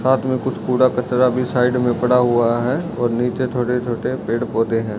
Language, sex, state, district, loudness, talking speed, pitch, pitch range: Hindi, male, Bihar, Darbhanga, -18 LUFS, 180 wpm, 125 Hz, 120-130 Hz